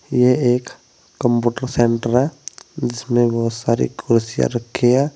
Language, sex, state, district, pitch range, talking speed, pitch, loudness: Hindi, male, Uttar Pradesh, Saharanpur, 115-130 Hz, 130 wpm, 120 Hz, -19 LUFS